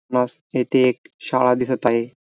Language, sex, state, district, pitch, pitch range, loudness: Marathi, male, Maharashtra, Dhule, 125 Hz, 125-130 Hz, -20 LUFS